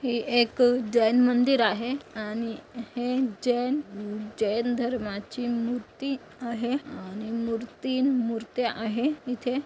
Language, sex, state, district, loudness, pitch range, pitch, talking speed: Marathi, female, Maharashtra, Nagpur, -27 LUFS, 225-250 Hz, 240 Hz, 105 wpm